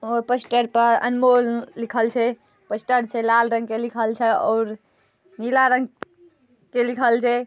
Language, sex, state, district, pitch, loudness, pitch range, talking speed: Maithili, female, Bihar, Saharsa, 240 Hz, -21 LUFS, 230-250 Hz, 150 wpm